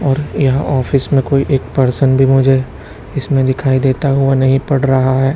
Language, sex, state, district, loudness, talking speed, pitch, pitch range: Hindi, male, Chhattisgarh, Raipur, -13 LUFS, 190 wpm, 135 Hz, 130-135 Hz